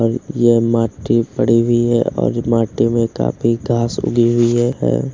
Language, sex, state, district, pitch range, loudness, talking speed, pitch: Hindi, male, Uttar Pradesh, Hamirpur, 115-120 Hz, -16 LUFS, 165 wpm, 115 Hz